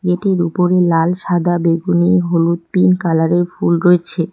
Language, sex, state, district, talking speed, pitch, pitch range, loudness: Bengali, female, West Bengal, Cooch Behar, 140 wpm, 175 Hz, 170-180 Hz, -14 LUFS